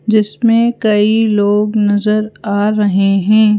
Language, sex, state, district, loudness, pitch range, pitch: Hindi, female, Madhya Pradesh, Bhopal, -13 LUFS, 205-215 Hz, 210 Hz